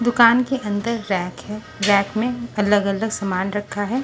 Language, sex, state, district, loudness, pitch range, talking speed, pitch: Hindi, female, Punjab, Pathankot, -20 LUFS, 200-235 Hz, 165 wpm, 210 Hz